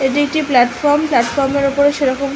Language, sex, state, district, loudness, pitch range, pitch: Bengali, female, West Bengal, Malda, -15 LUFS, 265-290 Hz, 275 Hz